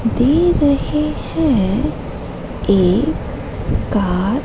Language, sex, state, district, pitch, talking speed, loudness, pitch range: Hindi, female, Madhya Pradesh, Katni, 250 Hz, 80 wpm, -17 LUFS, 200-295 Hz